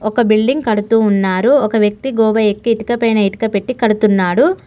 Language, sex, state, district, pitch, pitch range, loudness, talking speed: Telugu, female, Telangana, Mahabubabad, 220 Hz, 210-235 Hz, -14 LUFS, 165 wpm